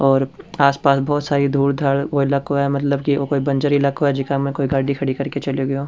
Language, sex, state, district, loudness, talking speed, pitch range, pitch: Rajasthani, male, Rajasthan, Churu, -19 LUFS, 245 wpm, 135-140 Hz, 140 Hz